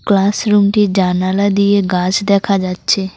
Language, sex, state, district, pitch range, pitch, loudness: Bengali, female, West Bengal, Cooch Behar, 185-200 Hz, 200 Hz, -14 LUFS